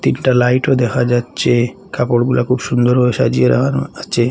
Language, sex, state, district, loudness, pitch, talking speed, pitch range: Bengali, male, Assam, Hailakandi, -15 LUFS, 125 Hz, 155 wpm, 120-125 Hz